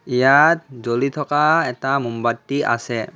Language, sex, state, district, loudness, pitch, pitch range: Assamese, male, Assam, Kamrup Metropolitan, -18 LUFS, 135 Hz, 120-145 Hz